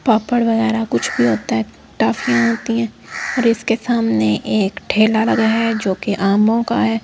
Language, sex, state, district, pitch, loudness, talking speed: Hindi, female, Delhi, New Delhi, 220 Hz, -17 LUFS, 180 wpm